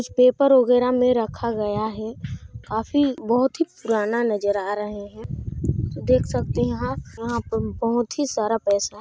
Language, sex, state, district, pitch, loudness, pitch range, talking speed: Hindi, female, Chhattisgarh, Sarguja, 225 Hz, -22 LUFS, 205-250 Hz, 160 wpm